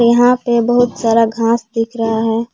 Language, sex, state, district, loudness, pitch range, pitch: Hindi, female, Jharkhand, Palamu, -14 LUFS, 225-240 Hz, 230 Hz